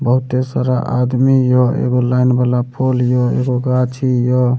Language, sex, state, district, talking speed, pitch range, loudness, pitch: Maithili, male, Bihar, Supaul, 155 wpm, 125-130 Hz, -15 LUFS, 125 Hz